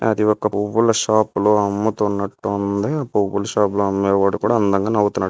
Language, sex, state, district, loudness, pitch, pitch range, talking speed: Telugu, male, Andhra Pradesh, Visakhapatnam, -19 LUFS, 105 Hz, 100-110 Hz, 160 wpm